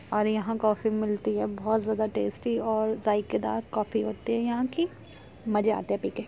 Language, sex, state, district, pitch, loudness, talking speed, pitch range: Hindi, female, Uttar Pradesh, Jyotiba Phule Nagar, 215 Hz, -28 LUFS, 200 wpm, 210-225 Hz